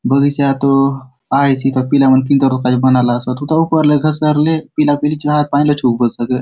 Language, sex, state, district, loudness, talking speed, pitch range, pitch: Halbi, male, Chhattisgarh, Bastar, -13 LUFS, 215 wpm, 130-150 Hz, 140 Hz